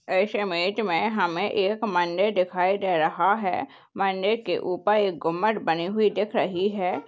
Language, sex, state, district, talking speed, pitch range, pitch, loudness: Hindi, female, Chhattisgarh, Bastar, 170 wpm, 180-210 Hz, 195 Hz, -24 LUFS